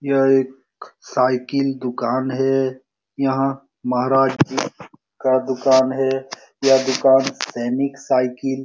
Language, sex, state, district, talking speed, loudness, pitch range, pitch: Hindi, male, Bihar, Lakhisarai, 110 wpm, -19 LUFS, 130-135 Hz, 135 Hz